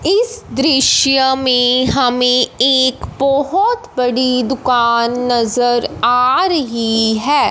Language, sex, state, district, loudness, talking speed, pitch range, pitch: Hindi, female, Punjab, Fazilka, -14 LUFS, 95 wpm, 245-275 Hz, 255 Hz